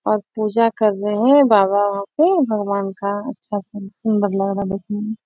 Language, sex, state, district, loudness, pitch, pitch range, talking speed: Hindi, female, Bihar, Bhagalpur, -18 LUFS, 205 Hz, 200-220 Hz, 215 wpm